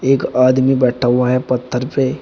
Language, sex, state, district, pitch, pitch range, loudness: Hindi, male, Uttar Pradesh, Shamli, 130 Hz, 125-135 Hz, -15 LUFS